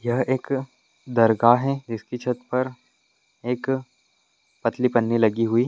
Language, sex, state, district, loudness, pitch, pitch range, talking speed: Hindi, male, West Bengal, Kolkata, -23 LUFS, 125 Hz, 115-130 Hz, 125 wpm